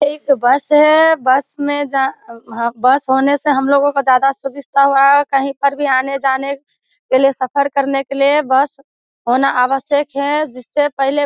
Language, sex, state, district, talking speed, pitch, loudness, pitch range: Hindi, female, Bihar, Kishanganj, 175 wpm, 275 Hz, -14 LUFS, 265-285 Hz